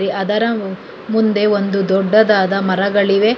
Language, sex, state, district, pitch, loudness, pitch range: Kannada, female, Karnataka, Bangalore, 200 Hz, -15 LUFS, 195-215 Hz